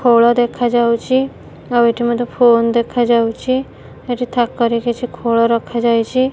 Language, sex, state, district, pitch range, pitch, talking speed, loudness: Odia, female, Odisha, Malkangiri, 235-245 Hz, 240 Hz, 115 wpm, -15 LUFS